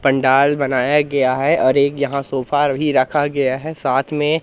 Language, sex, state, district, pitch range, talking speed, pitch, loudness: Hindi, male, Madhya Pradesh, Katni, 135-150 Hz, 190 wpm, 140 Hz, -17 LUFS